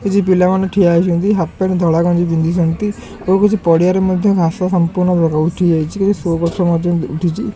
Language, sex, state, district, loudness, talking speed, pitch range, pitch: Odia, male, Odisha, Khordha, -14 LUFS, 200 wpm, 170-190 Hz, 175 Hz